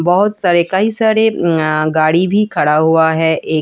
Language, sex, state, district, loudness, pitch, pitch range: Hindi, female, Delhi, New Delhi, -13 LUFS, 170 Hz, 160-205 Hz